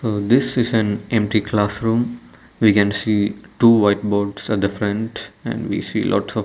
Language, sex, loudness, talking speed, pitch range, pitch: English, male, -19 LUFS, 195 wpm, 100-115 Hz, 105 Hz